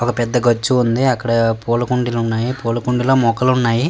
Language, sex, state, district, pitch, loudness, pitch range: Telugu, male, Telangana, Karimnagar, 120 Hz, -17 LUFS, 115-125 Hz